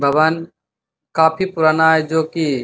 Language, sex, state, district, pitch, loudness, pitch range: Hindi, male, Bihar, Bhagalpur, 160 Hz, -16 LUFS, 155-160 Hz